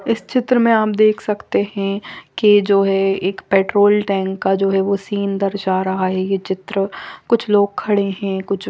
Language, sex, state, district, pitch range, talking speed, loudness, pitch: Hindi, female, Punjab, Fazilka, 195-210 Hz, 195 wpm, -17 LUFS, 195 Hz